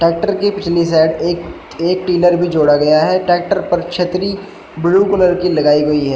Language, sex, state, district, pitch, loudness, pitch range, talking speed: Hindi, male, Uttar Pradesh, Shamli, 175 Hz, -14 LUFS, 160-185 Hz, 205 wpm